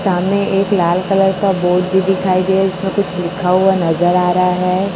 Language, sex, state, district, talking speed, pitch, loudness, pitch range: Hindi, female, Chhattisgarh, Raipur, 205 wpm, 185 Hz, -14 LUFS, 180-195 Hz